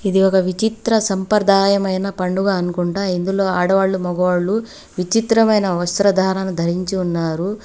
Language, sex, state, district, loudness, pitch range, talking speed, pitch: Telugu, female, Telangana, Hyderabad, -17 LUFS, 180-200 Hz, 100 wpm, 190 Hz